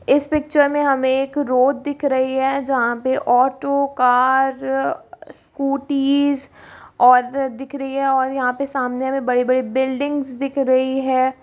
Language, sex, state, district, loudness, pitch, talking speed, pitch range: Hindi, female, Bihar, Kishanganj, -18 LUFS, 270 Hz, 145 wpm, 260-275 Hz